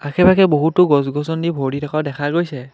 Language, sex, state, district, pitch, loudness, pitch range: Assamese, male, Assam, Kamrup Metropolitan, 150 Hz, -17 LUFS, 145-170 Hz